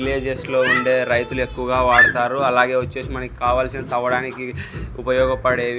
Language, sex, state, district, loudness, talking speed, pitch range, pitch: Telugu, male, Andhra Pradesh, Sri Satya Sai, -19 LUFS, 125 wpm, 125-130 Hz, 130 Hz